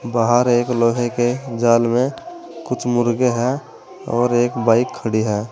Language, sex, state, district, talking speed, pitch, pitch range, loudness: Hindi, male, Uttar Pradesh, Saharanpur, 150 wpm, 120 Hz, 115-125 Hz, -18 LUFS